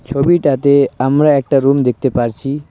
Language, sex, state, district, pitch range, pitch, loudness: Bengali, male, West Bengal, Cooch Behar, 130-145 Hz, 140 Hz, -13 LUFS